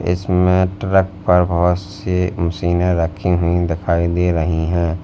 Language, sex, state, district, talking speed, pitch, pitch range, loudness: Hindi, male, Uttar Pradesh, Lalitpur, 145 wpm, 90 Hz, 85-90 Hz, -17 LUFS